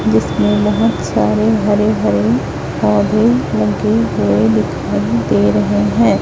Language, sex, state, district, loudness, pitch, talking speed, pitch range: Hindi, female, Chhattisgarh, Raipur, -14 LUFS, 110 Hz, 105 wpm, 105-115 Hz